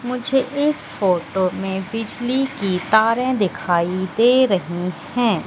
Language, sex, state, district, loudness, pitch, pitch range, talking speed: Hindi, female, Madhya Pradesh, Katni, -20 LUFS, 220 Hz, 185-250 Hz, 120 wpm